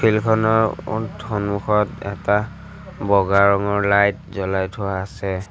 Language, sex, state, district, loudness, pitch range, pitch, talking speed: Assamese, male, Assam, Sonitpur, -20 LUFS, 100-105 Hz, 100 Hz, 110 wpm